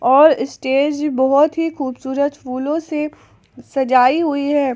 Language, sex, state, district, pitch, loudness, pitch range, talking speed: Hindi, female, Jharkhand, Palamu, 285 Hz, -17 LUFS, 265-300 Hz, 125 wpm